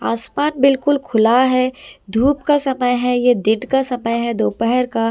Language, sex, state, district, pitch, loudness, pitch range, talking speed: Hindi, female, Delhi, New Delhi, 250 Hz, -17 LUFS, 230-270 Hz, 175 wpm